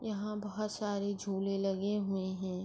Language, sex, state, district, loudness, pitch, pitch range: Urdu, female, Andhra Pradesh, Anantapur, -36 LUFS, 200 Hz, 195-210 Hz